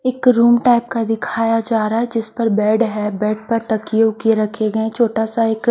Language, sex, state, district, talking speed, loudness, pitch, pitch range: Hindi, female, Haryana, Charkhi Dadri, 240 wpm, -17 LUFS, 225 Hz, 220-230 Hz